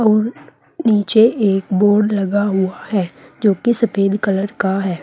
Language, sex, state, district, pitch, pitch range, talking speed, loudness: Hindi, female, Uttar Pradesh, Saharanpur, 205 Hz, 195-215 Hz, 155 wpm, -16 LUFS